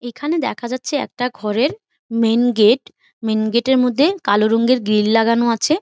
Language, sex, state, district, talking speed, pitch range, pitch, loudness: Bengali, female, West Bengal, Malda, 165 wpm, 225-280 Hz, 240 Hz, -17 LUFS